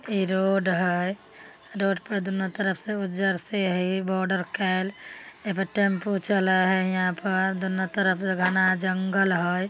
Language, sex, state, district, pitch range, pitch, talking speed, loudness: Maithili, female, Bihar, Samastipur, 185-195 Hz, 190 Hz, 160 wpm, -25 LUFS